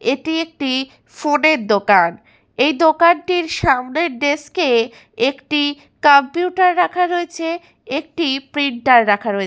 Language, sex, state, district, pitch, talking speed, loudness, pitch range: Bengali, female, West Bengal, Malda, 290 Hz, 110 wpm, -16 LUFS, 255-335 Hz